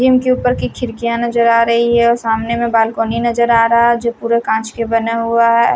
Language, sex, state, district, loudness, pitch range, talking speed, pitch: Hindi, female, Haryana, Rohtak, -14 LUFS, 230-235 Hz, 250 wpm, 235 Hz